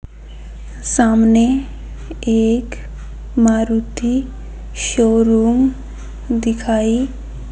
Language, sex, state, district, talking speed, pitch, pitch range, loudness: Hindi, female, Haryana, Charkhi Dadri, 40 wpm, 225 Hz, 225-240 Hz, -16 LUFS